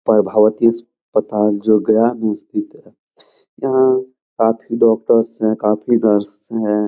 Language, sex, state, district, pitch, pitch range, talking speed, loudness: Hindi, male, Bihar, Jahanabad, 110 Hz, 105-120 Hz, 130 wpm, -16 LUFS